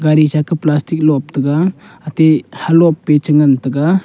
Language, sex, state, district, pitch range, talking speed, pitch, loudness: Wancho, male, Arunachal Pradesh, Longding, 150-165 Hz, 180 wpm, 155 Hz, -13 LUFS